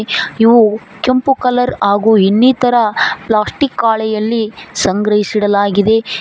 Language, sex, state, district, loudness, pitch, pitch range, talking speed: Kannada, female, Karnataka, Koppal, -13 LUFS, 220 Hz, 210-240 Hz, 85 wpm